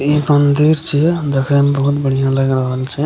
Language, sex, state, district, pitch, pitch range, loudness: Maithili, male, Bihar, Begusarai, 140 Hz, 135-150 Hz, -14 LUFS